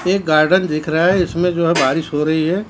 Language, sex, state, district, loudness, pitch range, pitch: Hindi, male, Maharashtra, Mumbai Suburban, -16 LUFS, 155-180 Hz, 165 Hz